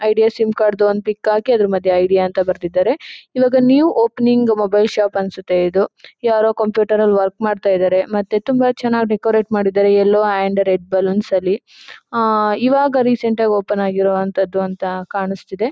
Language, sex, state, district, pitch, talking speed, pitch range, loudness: Kannada, female, Karnataka, Chamarajanagar, 210 Hz, 175 wpm, 190-225 Hz, -16 LUFS